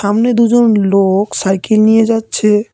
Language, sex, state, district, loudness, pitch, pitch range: Bengali, male, West Bengal, Cooch Behar, -12 LUFS, 215 Hz, 200-225 Hz